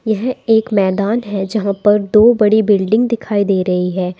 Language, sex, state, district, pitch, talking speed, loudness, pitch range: Hindi, female, Uttar Pradesh, Saharanpur, 210 Hz, 185 wpm, -14 LUFS, 195-220 Hz